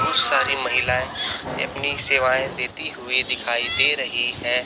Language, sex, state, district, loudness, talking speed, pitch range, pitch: Hindi, male, Chhattisgarh, Raipur, -18 LUFS, 140 wpm, 125-135 Hz, 130 Hz